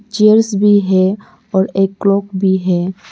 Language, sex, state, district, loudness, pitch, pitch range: Hindi, male, Arunachal Pradesh, Lower Dibang Valley, -14 LUFS, 195 Hz, 190-210 Hz